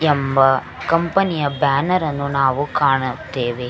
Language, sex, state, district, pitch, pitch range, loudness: Kannada, female, Karnataka, Belgaum, 140 Hz, 130-155 Hz, -18 LUFS